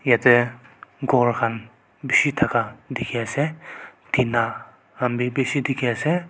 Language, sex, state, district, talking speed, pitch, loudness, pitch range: Nagamese, male, Nagaland, Kohima, 105 wpm, 125 Hz, -22 LUFS, 120-140 Hz